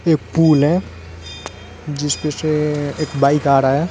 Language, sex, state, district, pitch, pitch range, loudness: Hindi, male, Bihar, Saran, 145 Hz, 130-155 Hz, -17 LUFS